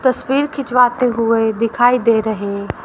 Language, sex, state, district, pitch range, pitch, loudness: Hindi, female, Haryana, Rohtak, 225-250 Hz, 240 Hz, -16 LUFS